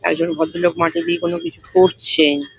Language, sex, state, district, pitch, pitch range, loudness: Bengali, female, West Bengal, Paschim Medinipur, 170 Hz, 160-170 Hz, -17 LUFS